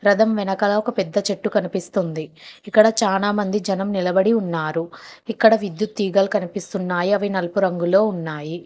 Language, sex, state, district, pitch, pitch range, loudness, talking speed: Telugu, female, Telangana, Hyderabad, 200 Hz, 180-210 Hz, -20 LUFS, 130 wpm